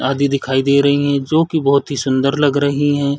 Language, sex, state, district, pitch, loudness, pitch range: Hindi, male, Chhattisgarh, Bilaspur, 140 Hz, -15 LUFS, 140-145 Hz